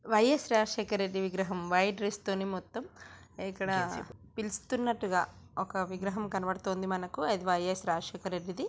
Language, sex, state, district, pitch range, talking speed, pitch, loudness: Telugu, female, Andhra Pradesh, Krishna, 185-210 Hz, 125 wpm, 190 Hz, -33 LUFS